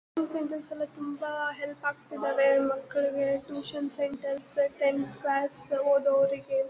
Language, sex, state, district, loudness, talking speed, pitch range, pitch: Kannada, female, Karnataka, Bellary, -29 LUFS, 125 wpm, 275-290 Hz, 280 Hz